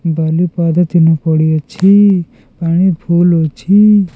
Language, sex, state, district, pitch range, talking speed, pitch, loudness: Odia, male, Odisha, Khordha, 160-185 Hz, 115 wpm, 170 Hz, -11 LUFS